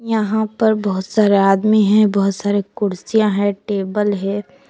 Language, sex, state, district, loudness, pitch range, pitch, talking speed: Hindi, female, Jharkhand, Palamu, -17 LUFS, 200-215 Hz, 205 Hz, 155 wpm